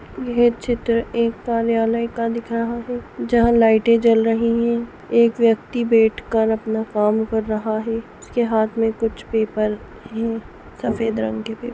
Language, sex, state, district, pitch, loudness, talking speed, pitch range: Hindi, female, Bihar, Gopalganj, 230 Hz, -20 LUFS, 170 wpm, 220-235 Hz